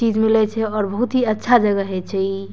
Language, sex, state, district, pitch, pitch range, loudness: Maithili, female, Bihar, Darbhanga, 215 Hz, 195-225 Hz, -19 LUFS